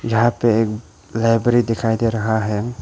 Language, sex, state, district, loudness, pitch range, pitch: Hindi, male, Arunachal Pradesh, Papum Pare, -18 LUFS, 110-115 Hz, 115 Hz